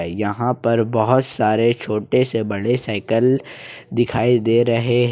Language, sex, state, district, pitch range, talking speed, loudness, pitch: Hindi, male, Jharkhand, Ranchi, 110-120 Hz, 130 wpm, -18 LUFS, 115 Hz